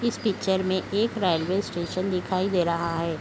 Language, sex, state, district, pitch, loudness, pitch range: Hindi, female, Uttar Pradesh, Etah, 185 Hz, -26 LUFS, 170-195 Hz